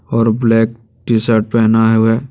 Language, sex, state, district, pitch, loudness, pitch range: Hindi, male, Jharkhand, Deoghar, 115 Hz, -13 LUFS, 110-115 Hz